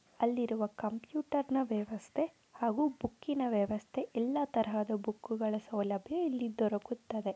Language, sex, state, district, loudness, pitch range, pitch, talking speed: Kannada, female, Karnataka, Dharwad, -35 LUFS, 215-265 Hz, 230 Hz, 105 wpm